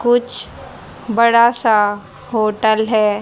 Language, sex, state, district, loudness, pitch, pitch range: Hindi, female, Haryana, Rohtak, -15 LUFS, 220 Hz, 210-235 Hz